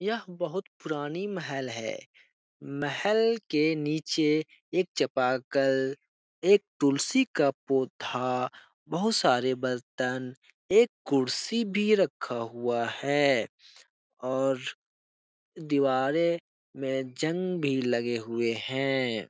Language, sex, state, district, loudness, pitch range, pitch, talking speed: Hindi, male, Bihar, Jahanabad, -28 LUFS, 125-170 Hz, 140 Hz, 100 wpm